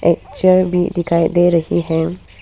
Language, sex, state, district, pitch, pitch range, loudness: Hindi, female, Arunachal Pradesh, Papum Pare, 175 Hz, 170-180 Hz, -15 LUFS